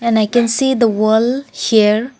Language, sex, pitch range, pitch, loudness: English, female, 220-250 Hz, 230 Hz, -14 LUFS